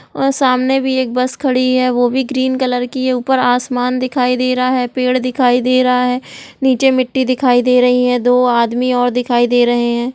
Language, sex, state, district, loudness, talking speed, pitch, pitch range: Hindi, female, Bihar, Jahanabad, -14 LUFS, 220 wpm, 255 Hz, 245-260 Hz